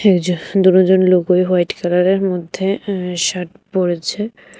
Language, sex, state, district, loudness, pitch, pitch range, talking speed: Bengali, female, Tripura, West Tripura, -16 LUFS, 185 Hz, 180-195 Hz, 145 wpm